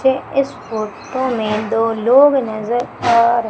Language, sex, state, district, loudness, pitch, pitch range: Hindi, female, Madhya Pradesh, Umaria, -16 LUFS, 235 Hz, 225-260 Hz